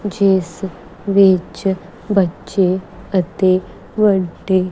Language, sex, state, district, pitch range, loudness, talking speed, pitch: Punjabi, female, Punjab, Kapurthala, 185-200 Hz, -17 LUFS, 65 wpm, 190 Hz